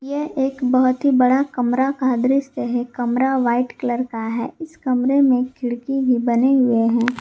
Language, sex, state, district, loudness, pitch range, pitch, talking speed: Hindi, female, Jharkhand, Garhwa, -19 LUFS, 245-270 Hz, 255 Hz, 185 wpm